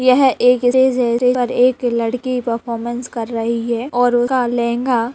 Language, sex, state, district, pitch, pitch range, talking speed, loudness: Hindi, female, Chhattisgarh, Raigarh, 245 Hz, 235-250 Hz, 175 wpm, -17 LUFS